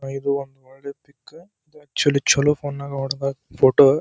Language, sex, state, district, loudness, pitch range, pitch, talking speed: Kannada, male, Karnataka, Dharwad, -20 LUFS, 135-145 Hz, 140 Hz, 150 wpm